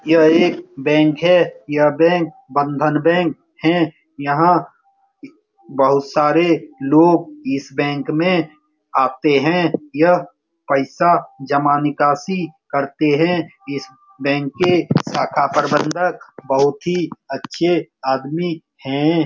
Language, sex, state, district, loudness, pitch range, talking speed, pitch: Hindi, male, Bihar, Saran, -17 LUFS, 145-170 Hz, 110 wpm, 155 Hz